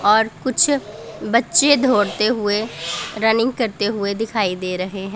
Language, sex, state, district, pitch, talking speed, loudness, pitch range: Hindi, female, Punjab, Pathankot, 215 Hz, 140 wpm, -18 LUFS, 200-235 Hz